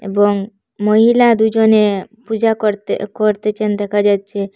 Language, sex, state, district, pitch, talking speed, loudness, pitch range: Bengali, female, Assam, Hailakandi, 210 Hz, 105 wpm, -15 LUFS, 205-220 Hz